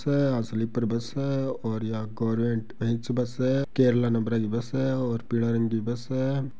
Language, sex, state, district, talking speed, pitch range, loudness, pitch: Marwari, male, Rajasthan, Churu, 180 wpm, 115-130 Hz, -27 LUFS, 120 Hz